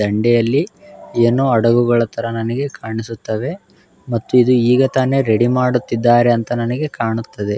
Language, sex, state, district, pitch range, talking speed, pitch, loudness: Kannada, male, Karnataka, Bellary, 115-125 Hz, 120 wpm, 120 Hz, -16 LUFS